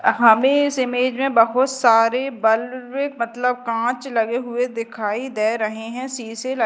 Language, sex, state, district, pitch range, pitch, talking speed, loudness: Hindi, female, Madhya Pradesh, Dhar, 230-260 Hz, 245 Hz, 145 wpm, -20 LUFS